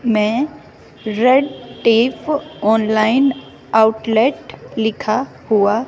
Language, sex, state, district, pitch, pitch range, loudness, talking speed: Hindi, female, Himachal Pradesh, Shimla, 225 Hz, 220-260 Hz, -16 LUFS, 70 wpm